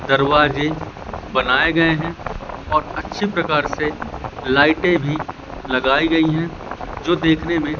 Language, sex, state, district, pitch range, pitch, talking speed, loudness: Hindi, male, Madhya Pradesh, Katni, 145-165 Hz, 155 Hz, 125 wpm, -18 LUFS